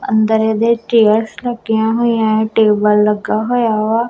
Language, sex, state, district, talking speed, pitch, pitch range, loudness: Punjabi, female, Punjab, Kapurthala, 130 wpm, 220 Hz, 215-230 Hz, -14 LUFS